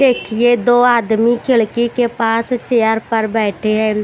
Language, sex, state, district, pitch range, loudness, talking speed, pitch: Hindi, female, Bihar, West Champaran, 220-240 Hz, -15 LUFS, 150 wpm, 230 Hz